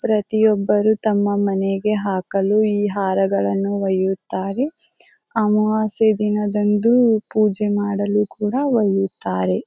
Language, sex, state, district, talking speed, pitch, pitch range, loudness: Kannada, female, Karnataka, Bijapur, 80 wpm, 210 Hz, 195-215 Hz, -19 LUFS